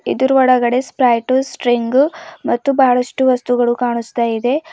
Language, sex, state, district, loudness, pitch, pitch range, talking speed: Kannada, female, Karnataka, Bidar, -15 LUFS, 250 Hz, 240-265 Hz, 115 wpm